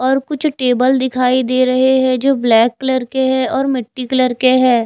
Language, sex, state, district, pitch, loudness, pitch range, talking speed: Hindi, female, Chhattisgarh, Raipur, 255 Hz, -14 LUFS, 250-265 Hz, 210 wpm